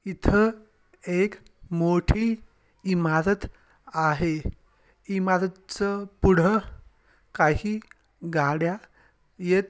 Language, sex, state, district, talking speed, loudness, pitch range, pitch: Marathi, male, Maharashtra, Sindhudurg, 70 wpm, -25 LUFS, 170-200 Hz, 190 Hz